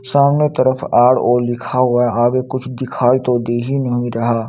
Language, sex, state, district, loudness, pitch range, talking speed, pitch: Hindi, male, Chandigarh, Chandigarh, -16 LUFS, 120-130 Hz, 185 wpm, 125 Hz